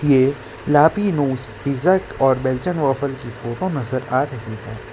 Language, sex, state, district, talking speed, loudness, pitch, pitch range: Hindi, male, Gujarat, Valsad, 145 wpm, -20 LUFS, 135 Hz, 125-145 Hz